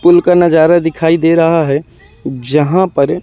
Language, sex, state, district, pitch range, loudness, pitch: Hindi, male, Madhya Pradesh, Katni, 150-175 Hz, -11 LUFS, 165 Hz